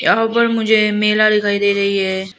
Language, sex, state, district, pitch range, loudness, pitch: Hindi, female, Arunachal Pradesh, Lower Dibang Valley, 200-220 Hz, -15 LUFS, 210 Hz